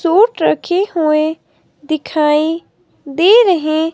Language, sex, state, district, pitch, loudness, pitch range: Hindi, female, Himachal Pradesh, Shimla, 320 Hz, -14 LUFS, 305-355 Hz